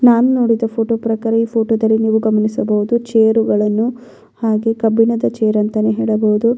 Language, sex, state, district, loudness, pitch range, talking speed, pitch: Kannada, female, Karnataka, Bellary, -15 LUFS, 220-230 Hz, 125 wpm, 225 Hz